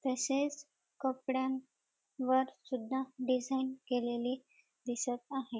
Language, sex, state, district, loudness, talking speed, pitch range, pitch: Marathi, female, Maharashtra, Dhule, -36 LUFS, 85 wpm, 255-265 Hz, 260 Hz